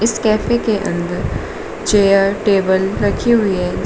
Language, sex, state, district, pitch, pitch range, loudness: Hindi, female, Uttar Pradesh, Shamli, 200 Hz, 195-220 Hz, -16 LUFS